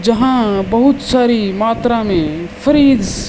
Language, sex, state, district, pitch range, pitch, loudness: Hindi, male, Rajasthan, Bikaner, 195-255 Hz, 230 Hz, -13 LUFS